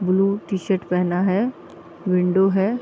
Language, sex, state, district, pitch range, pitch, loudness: Hindi, female, Bihar, Gopalganj, 180-195 Hz, 190 Hz, -21 LUFS